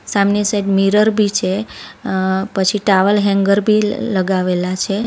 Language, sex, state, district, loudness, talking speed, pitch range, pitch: Gujarati, female, Gujarat, Valsad, -15 LUFS, 155 wpm, 190-205 Hz, 200 Hz